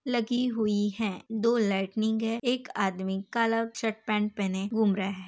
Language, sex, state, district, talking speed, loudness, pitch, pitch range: Hindi, female, Uttar Pradesh, Hamirpur, 170 wpm, -29 LUFS, 220 Hz, 200-230 Hz